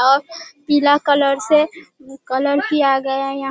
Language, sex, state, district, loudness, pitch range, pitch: Hindi, female, Bihar, Darbhanga, -17 LUFS, 270-290 Hz, 280 Hz